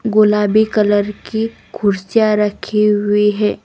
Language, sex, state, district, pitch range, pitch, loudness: Hindi, female, Bihar, West Champaran, 205-215 Hz, 210 Hz, -15 LUFS